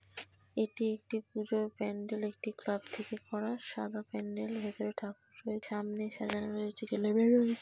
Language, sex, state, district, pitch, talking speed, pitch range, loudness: Bengali, female, West Bengal, Dakshin Dinajpur, 215 Hz, 135 wpm, 210-220 Hz, -36 LUFS